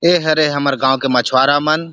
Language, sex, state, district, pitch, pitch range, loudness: Chhattisgarhi, male, Chhattisgarh, Rajnandgaon, 145 Hz, 130-155 Hz, -14 LUFS